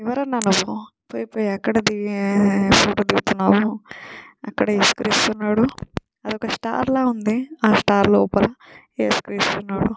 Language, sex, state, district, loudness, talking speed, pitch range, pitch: Telugu, female, Telangana, Nalgonda, -19 LUFS, 145 wpm, 200-230 Hz, 215 Hz